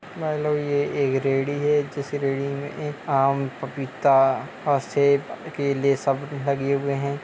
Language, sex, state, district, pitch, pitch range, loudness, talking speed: Hindi, male, Uttar Pradesh, Hamirpur, 140 Hz, 135-145 Hz, -23 LUFS, 140 wpm